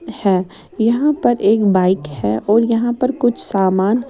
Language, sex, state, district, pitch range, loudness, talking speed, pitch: Hindi, female, Odisha, Sambalpur, 190-240 Hz, -16 LUFS, 160 wpm, 220 Hz